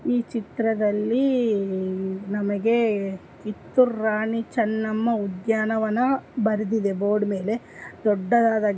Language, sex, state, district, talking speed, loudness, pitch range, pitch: Kannada, female, Karnataka, Dharwad, 70 wpm, -24 LUFS, 205-230 Hz, 220 Hz